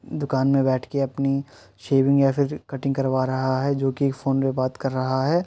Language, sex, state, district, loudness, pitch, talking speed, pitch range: Hindi, male, Uttar Pradesh, Muzaffarnagar, -23 LUFS, 135 Hz, 220 wpm, 130-140 Hz